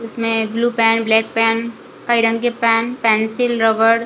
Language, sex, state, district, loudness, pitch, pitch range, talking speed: Hindi, female, Chhattisgarh, Bilaspur, -16 LUFS, 225 Hz, 225-235 Hz, 160 wpm